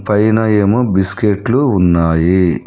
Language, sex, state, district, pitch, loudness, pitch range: Telugu, male, Telangana, Hyderabad, 100 Hz, -13 LUFS, 90-110 Hz